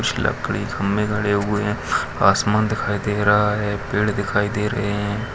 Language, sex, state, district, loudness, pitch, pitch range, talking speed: Hindi, male, Bihar, Araria, -20 LUFS, 105 Hz, 100-105 Hz, 180 wpm